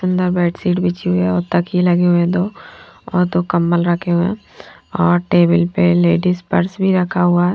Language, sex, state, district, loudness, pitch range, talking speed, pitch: Hindi, female, Haryana, Jhajjar, -16 LUFS, 175-180 Hz, 215 wpm, 175 Hz